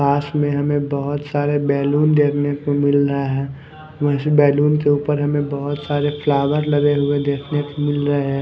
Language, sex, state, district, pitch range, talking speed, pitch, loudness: Hindi, male, Punjab, Kapurthala, 140-145 Hz, 185 wpm, 145 Hz, -18 LUFS